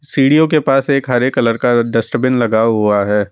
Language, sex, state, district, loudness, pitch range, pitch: Hindi, male, Rajasthan, Jaipur, -14 LUFS, 115-135 Hz, 120 Hz